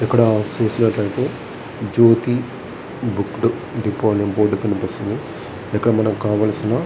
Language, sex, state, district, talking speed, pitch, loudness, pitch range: Telugu, male, Andhra Pradesh, Visakhapatnam, 105 wpm, 110 Hz, -19 LUFS, 105-115 Hz